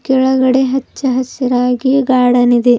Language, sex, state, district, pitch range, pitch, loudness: Kannada, female, Karnataka, Bidar, 250-265 Hz, 260 Hz, -13 LUFS